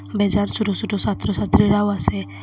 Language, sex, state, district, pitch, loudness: Bengali, female, Assam, Hailakandi, 200 Hz, -19 LUFS